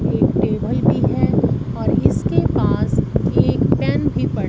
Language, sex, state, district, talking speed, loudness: Hindi, female, Punjab, Fazilka, 160 wpm, -18 LUFS